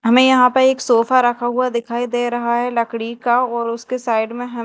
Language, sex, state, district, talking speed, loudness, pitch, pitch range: Hindi, female, Madhya Pradesh, Dhar, 235 wpm, -17 LUFS, 240 Hz, 235-250 Hz